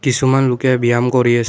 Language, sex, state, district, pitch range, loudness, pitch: Assamese, male, Assam, Kamrup Metropolitan, 120-130 Hz, -15 LUFS, 125 Hz